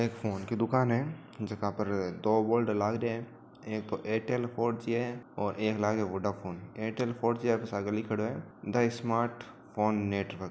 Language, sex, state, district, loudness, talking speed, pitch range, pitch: Marwari, male, Rajasthan, Churu, -32 LUFS, 180 wpm, 105-120 Hz, 110 Hz